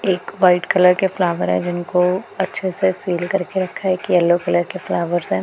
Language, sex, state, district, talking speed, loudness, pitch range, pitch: Hindi, female, Punjab, Pathankot, 210 wpm, -18 LUFS, 175-190 Hz, 180 Hz